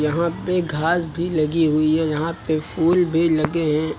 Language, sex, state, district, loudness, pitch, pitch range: Hindi, male, Uttar Pradesh, Lucknow, -20 LUFS, 160 Hz, 155-170 Hz